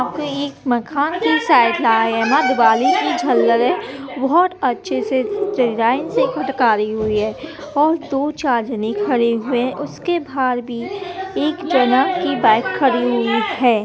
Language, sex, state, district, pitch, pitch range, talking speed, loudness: Hindi, female, Bihar, Muzaffarpur, 260 Hz, 235-310 Hz, 150 wpm, -17 LUFS